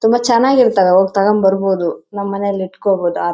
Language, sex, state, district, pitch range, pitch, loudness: Kannada, female, Karnataka, Bellary, 190-210 Hz, 195 Hz, -14 LUFS